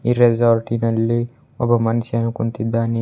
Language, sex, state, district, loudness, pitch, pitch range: Kannada, male, Karnataka, Bidar, -19 LUFS, 115 Hz, 115-120 Hz